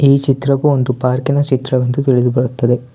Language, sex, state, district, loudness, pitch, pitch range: Kannada, male, Karnataka, Bangalore, -15 LUFS, 130 Hz, 125-140 Hz